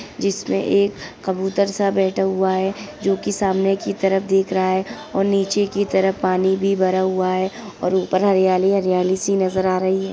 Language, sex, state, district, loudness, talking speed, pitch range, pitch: Hindi, female, Uttar Pradesh, Ghazipur, -19 LUFS, 200 wpm, 185-195 Hz, 190 Hz